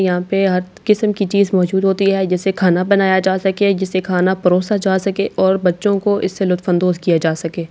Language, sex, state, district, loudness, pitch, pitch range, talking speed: Hindi, female, Delhi, New Delhi, -16 LUFS, 190 Hz, 180-195 Hz, 220 wpm